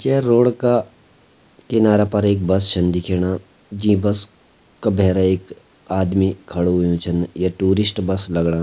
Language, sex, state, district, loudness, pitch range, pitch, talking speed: Garhwali, male, Uttarakhand, Uttarkashi, -17 LUFS, 90-105 Hz, 95 Hz, 155 wpm